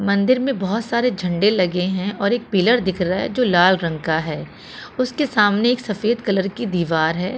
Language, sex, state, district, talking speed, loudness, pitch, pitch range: Hindi, female, Delhi, New Delhi, 210 wpm, -19 LUFS, 200 Hz, 180-235 Hz